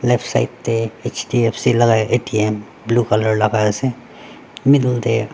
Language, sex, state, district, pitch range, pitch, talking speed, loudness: Nagamese, male, Nagaland, Dimapur, 110-120 Hz, 115 Hz, 135 wpm, -17 LUFS